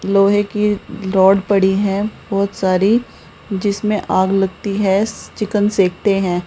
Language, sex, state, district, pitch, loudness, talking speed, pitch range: Hindi, female, Rajasthan, Jaipur, 200 Hz, -16 LUFS, 130 wpm, 195-205 Hz